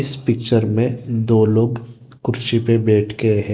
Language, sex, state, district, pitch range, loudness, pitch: Hindi, male, Telangana, Hyderabad, 110-120 Hz, -17 LUFS, 115 Hz